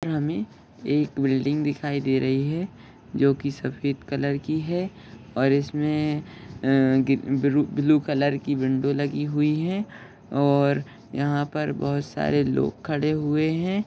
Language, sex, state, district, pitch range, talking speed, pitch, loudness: Hindi, male, Maharashtra, Solapur, 135-150 Hz, 135 wpm, 145 Hz, -24 LUFS